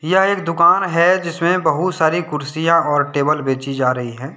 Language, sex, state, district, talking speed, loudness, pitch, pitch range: Hindi, male, Jharkhand, Deoghar, 190 wpm, -17 LUFS, 160 Hz, 140-175 Hz